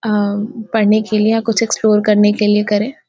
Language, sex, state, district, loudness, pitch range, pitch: Hindi, female, Chhattisgarh, Korba, -14 LUFS, 210-225 Hz, 215 Hz